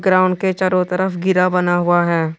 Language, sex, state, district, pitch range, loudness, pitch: Hindi, male, Tripura, West Tripura, 175-185 Hz, -16 LUFS, 180 Hz